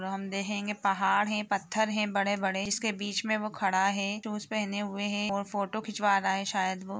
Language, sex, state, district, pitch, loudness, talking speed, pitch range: Hindi, female, Jharkhand, Jamtara, 200 Hz, -30 LUFS, 225 wpm, 195-210 Hz